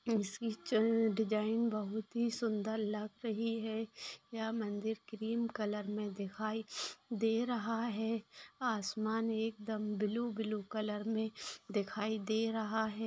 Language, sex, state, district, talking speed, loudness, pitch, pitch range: Hindi, female, Maharashtra, Chandrapur, 135 wpm, -37 LUFS, 220 Hz, 215-225 Hz